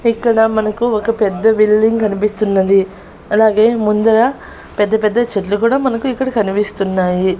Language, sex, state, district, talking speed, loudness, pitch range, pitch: Telugu, female, Andhra Pradesh, Annamaya, 120 wpm, -14 LUFS, 205-230 Hz, 215 Hz